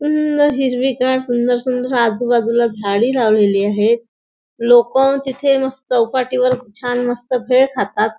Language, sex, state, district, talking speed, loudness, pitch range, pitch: Marathi, female, Maharashtra, Nagpur, 115 wpm, -16 LUFS, 235-260 Hz, 245 Hz